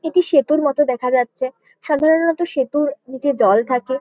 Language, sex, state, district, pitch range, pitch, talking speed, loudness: Bengali, female, West Bengal, Kolkata, 260-305 Hz, 285 Hz, 180 wpm, -18 LUFS